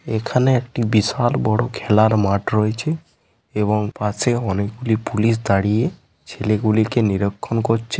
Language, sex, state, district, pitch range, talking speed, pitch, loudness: Bengali, male, West Bengal, Paschim Medinipur, 105-120 Hz, 120 wpm, 110 Hz, -19 LUFS